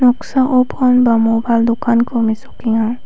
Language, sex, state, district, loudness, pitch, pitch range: Garo, female, Meghalaya, West Garo Hills, -14 LUFS, 235 Hz, 230-250 Hz